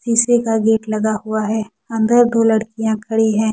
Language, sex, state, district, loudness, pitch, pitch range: Hindi, female, Jharkhand, Deoghar, -17 LUFS, 220 Hz, 220-230 Hz